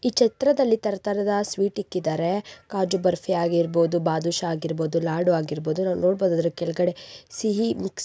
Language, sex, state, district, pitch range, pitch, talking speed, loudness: Kannada, female, Karnataka, Raichur, 170-205 Hz, 180 Hz, 135 wpm, -24 LUFS